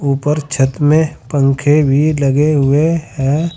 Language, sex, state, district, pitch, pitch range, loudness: Hindi, male, Uttar Pradesh, Saharanpur, 145 Hz, 135-150 Hz, -14 LUFS